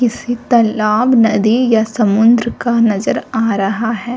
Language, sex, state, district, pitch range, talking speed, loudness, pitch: Hindi, female, Uttar Pradesh, Jyotiba Phule Nagar, 220-240 Hz, 145 wpm, -13 LUFS, 225 Hz